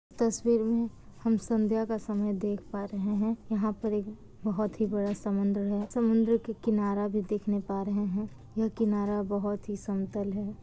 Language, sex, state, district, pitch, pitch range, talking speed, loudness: Hindi, female, Bihar, Kishanganj, 210 Hz, 205-220 Hz, 170 wpm, -30 LUFS